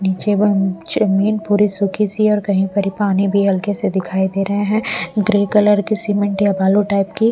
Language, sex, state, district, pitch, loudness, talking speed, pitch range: Hindi, female, Bihar, Patna, 200 Hz, -16 LUFS, 195 wpm, 195-210 Hz